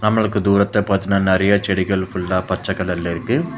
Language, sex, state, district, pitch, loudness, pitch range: Tamil, male, Tamil Nadu, Chennai, 95 Hz, -18 LUFS, 95-100 Hz